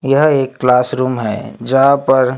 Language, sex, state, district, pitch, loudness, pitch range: Hindi, male, Maharashtra, Gondia, 130 Hz, -14 LUFS, 125-135 Hz